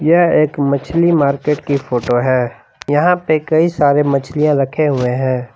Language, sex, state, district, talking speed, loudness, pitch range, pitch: Hindi, male, Jharkhand, Palamu, 160 wpm, -15 LUFS, 135-155 Hz, 145 Hz